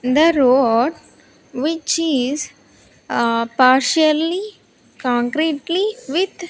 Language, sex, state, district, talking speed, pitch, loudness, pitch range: English, female, Andhra Pradesh, Sri Satya Sai, 90 wpm, 300 Hz, -18 LUFS, 255-330 Hz